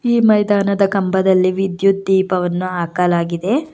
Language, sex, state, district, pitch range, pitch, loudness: Kannada, female, Karnataka, Bangalore, 180-200 Hz, 190 Hz, -16 LUFS